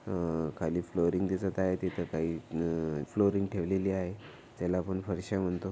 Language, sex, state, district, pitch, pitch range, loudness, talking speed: Marathi, male, Maharashtra, Aurangabad, 90 Hz, 85-95 Hz, -32 LUFS, 145 wpm